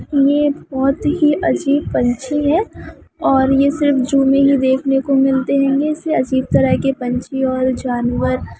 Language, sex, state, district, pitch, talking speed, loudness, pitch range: Hindi, female, West Bengal, Kolkata, 270 Hz, 165 wpm, -16 LUFS, 260-285 Hz